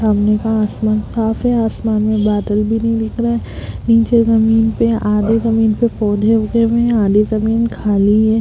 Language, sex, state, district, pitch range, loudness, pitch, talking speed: Hindi, female, Bihar, Lakhisarai, 215-230 Hz, -15 LUFS, 220 Hz, 190 wpm